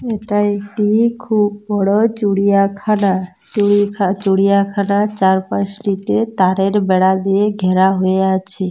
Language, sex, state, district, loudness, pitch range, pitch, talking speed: Bengali, female, West Bengal, Paschim Medinipur, -15 LUFS, 190-205 Hz, 200 Hz, 105 wpm